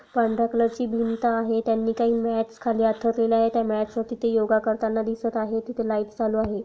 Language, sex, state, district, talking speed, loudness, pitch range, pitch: Marathi, female, Maharashtra, Sindhudurg, 200 wpm, -24 LUFS, 220-230 Hz, 225 Hz